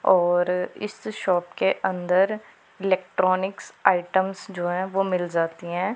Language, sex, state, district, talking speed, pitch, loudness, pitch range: Hindi, female, Punjab, Pathankot, 130 wpm, 185 Hz, -24 LUFS, 180-195 Hz